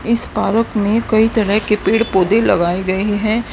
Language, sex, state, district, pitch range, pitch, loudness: Hindi, female, Haryana, Rohtak, 200-225 Hz, 215 Hz, -15 LUFS